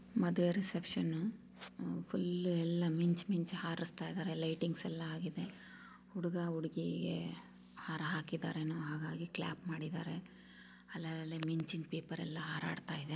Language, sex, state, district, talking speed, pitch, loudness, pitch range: Kannada, female, Karnataka, Chamarajanagar, 115 wpm, 165 Hz, -40 LUFS, 160-175 Hz